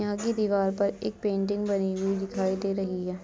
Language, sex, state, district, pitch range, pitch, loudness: Hindi, female, Uttar Pradesh, Muzaffarnagar, 190-205 Hz, 195 Hz, -28 LUFS